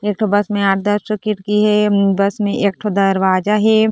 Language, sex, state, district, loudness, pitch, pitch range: Chhattisgarhi, female, Chhattisgarh, Korba, -16 LUFS, 205 Hz, 200-210 Hz